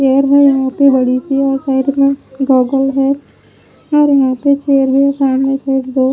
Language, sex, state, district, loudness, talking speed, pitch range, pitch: Hindi, female, Punjab, Pathankot, -12 LUFS, 155 wpm, 265-275 Hz, 270 Hz